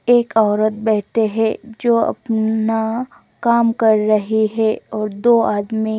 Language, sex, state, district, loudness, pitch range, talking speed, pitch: Hindi, female, Chandigarh, Chandigarh, -17 LUFS, 215-230 Hz, 130 wpm, 220 Hz